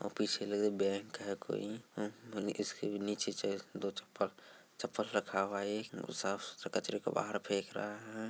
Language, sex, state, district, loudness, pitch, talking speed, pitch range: Angika, male, Bihar, Begusarai, -39 LUFS, 105 Hz, 195 wpm, 100-105 Hz